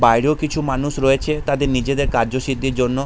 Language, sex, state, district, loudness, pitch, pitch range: Bengali, male, West Bengal, Jalpaiguri, -19 LUFS, 135 Hz, 130-140 Hz